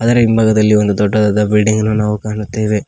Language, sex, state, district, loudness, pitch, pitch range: Kannada, male, Karnataka, Koppal, -13 LUFS, 105 Hz, 105-110 Hz